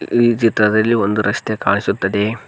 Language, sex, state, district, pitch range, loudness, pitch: Kannada, male, Karnataka, Koppal, 105-115 Hz, -16 LUFS, 105 Hz